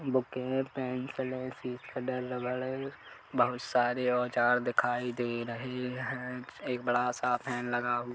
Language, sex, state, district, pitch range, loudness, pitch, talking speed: Hindi, male, Chhattisgarh, Kabirdham, 120-130 Hz, -32 LUFS, 125 Hz, 155 wpm